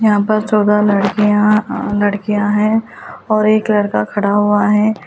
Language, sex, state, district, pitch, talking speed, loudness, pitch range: Hindi, female, Delhi, New Delhi, 210 Hz, 155 wpm, -14 LUFS, 205-215 Hz